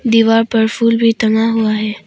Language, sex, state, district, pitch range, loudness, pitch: Hindi, female, Arunachal Pradesh, Papum Pare, 220-230 Hz, -13 LUFS, 225 Hz